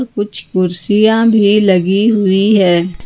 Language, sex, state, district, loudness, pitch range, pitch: Hindi, female, Jharkhand, Ranchi, -12 LUFS, 185-215 Hz, 205 Hz